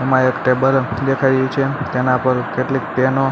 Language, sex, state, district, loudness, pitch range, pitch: Gujarati, male, Gujarat, Gandhinagar, -17 LUFS, 130-135 Hz, 130 Hz